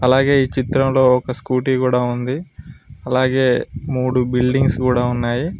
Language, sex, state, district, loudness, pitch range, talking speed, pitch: Telugu, female, Telangana, Mahabubabad, -18 LUFS, 125-130 Hz, 130 wpm, 130 Hz